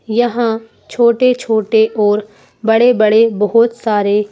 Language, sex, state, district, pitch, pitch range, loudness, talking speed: Hindi, female, Madhya Pradesh, Bhopal, 225 Hz, 215-235 Hz, -13 LUFS, 85 wpm